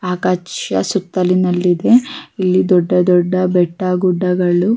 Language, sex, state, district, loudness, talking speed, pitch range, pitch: Kannada, female, Karnataka, Raichur, -15 LUFS, 90 wpm, 180-185 Hz, 180 Hz